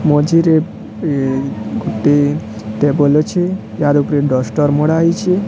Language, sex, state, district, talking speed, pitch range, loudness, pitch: Odia, male, Odisha, Sambalpur, 110 wpm, 145-165 Hz, -15 LUFS, 145 Hz